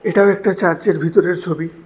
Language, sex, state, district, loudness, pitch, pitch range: Bengali, male, Tripura, West Tripura, -16 LUFS, 180 Hz, 165-200 Hz